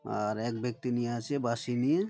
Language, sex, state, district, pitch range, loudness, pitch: Bengali, male, West Bengal, Malda, 115-125 Hz, -32 LUFS, 120 Hz